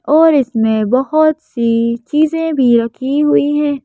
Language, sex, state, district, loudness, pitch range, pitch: Hindi, female, Madhya Pradesh, Bhopal, -13 LUFS, 235-310 Hz, 270 Hz